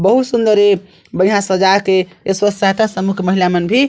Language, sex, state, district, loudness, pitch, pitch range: Chhattisgarhi, male, Chhattisgarh, Sarguja, -14 LUFS, 195 Hz, 185-205 Hz